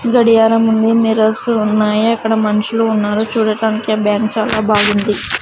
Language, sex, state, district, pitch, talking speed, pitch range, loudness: Telugu, female, Andhra Pradesh, Sri Satya Sai, 220 Hz, 120 wpm, 215-225 Hz, -14 LUFS